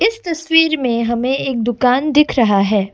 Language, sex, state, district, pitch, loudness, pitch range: Hindi, female, Assam, Kamrup Metropolitan, 255 Hz, -15 LUFS, 235-310 Hz